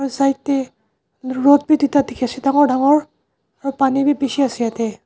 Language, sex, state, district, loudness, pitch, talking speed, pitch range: Nagamese, male, Nagaland, Dimapur, -17 LUFS, 275 Hz, 180 wpm, 260-285 Hz